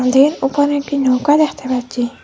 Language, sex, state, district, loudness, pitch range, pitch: Bengali, female, Assam, Hailakandi, -15 LUFS, 255-285 Hz, 270 Hz